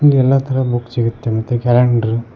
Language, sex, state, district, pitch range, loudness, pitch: Kannada, male, Karnataka, Koppal, 115-130 Hz, -15 LUFS, 120 Hz